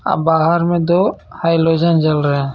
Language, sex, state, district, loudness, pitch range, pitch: Hindi, male, Jharkhand, Ranchi, -15 LUFS, 155-170 Hz, 165 Hz